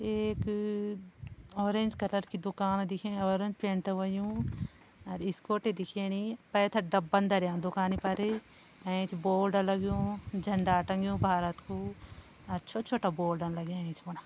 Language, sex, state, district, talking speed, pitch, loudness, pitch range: Garhwali, female, Uttarakhand, Uttarkashi, 120 wpm, 195 Hz, -33 LUFS, 180-205 Hz